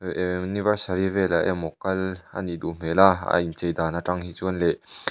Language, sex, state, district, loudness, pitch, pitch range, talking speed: Mizo, male, Mizoram, Aizawl, -25 LUFS, 90 Hz, 85-95 Hz, 210 wpm